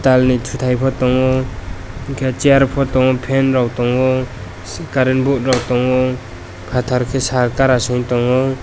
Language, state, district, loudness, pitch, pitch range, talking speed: Kokborok, Tripura, West Tripura, -16 LUFS, 130 Hz, 125-130 Hz, 155 wpm